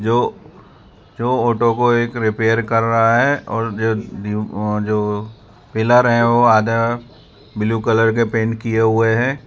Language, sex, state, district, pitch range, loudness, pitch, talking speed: Hindi, male, Gujarat, Valsad, 110-120 Hz, -17 LUFS, 115 Hz, 140 wpm